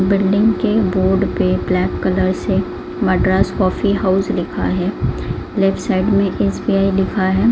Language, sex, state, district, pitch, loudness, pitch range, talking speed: Hindi, female, Delhi, New Delhi, 195 Hz, -17 LUFS, 185-200 Hz, 145 wpm